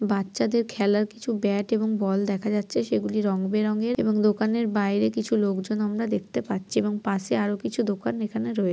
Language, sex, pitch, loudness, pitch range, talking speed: Bengali, female, 210 Hz, -25 LUFS, 200-220 Hz, 180 wpm